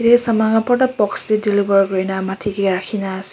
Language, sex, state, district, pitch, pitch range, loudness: Nagamese, male, Nagaland, Kohima, 205 Hz, 190-225 Hz, -17 LUFS